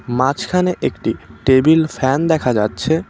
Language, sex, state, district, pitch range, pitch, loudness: Bengali, male, West Bengal, Cooch Behar, 125-160 Hz, 135 Hz, -16 LUFS